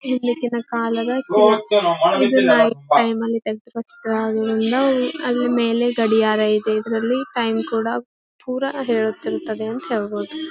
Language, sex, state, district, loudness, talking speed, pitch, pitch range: Kannada, female, Karnataka, Gulbarga, -19 LUFS, 110 wpm, 230 Hz, 220-245 Hz